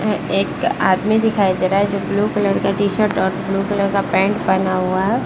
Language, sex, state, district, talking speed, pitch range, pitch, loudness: Hindi, female, Bihar, Saran, 215 wpm, 190-205 Hz, 200 Hz, -17 LUFS